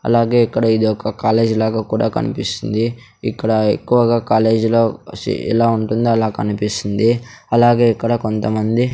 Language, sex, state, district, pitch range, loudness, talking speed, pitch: Telugu, male, Andhra Pradesh, Sri Satya Sai, 110-115 Hz, -17 LUFS, 135 wpm, 110 Hz